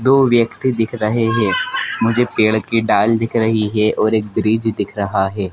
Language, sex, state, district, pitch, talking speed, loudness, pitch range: Hindi, male, Madhya Pradesh, Dhar, 110 Hz, 195 wpm, -16 LUFS, 105-115 Hz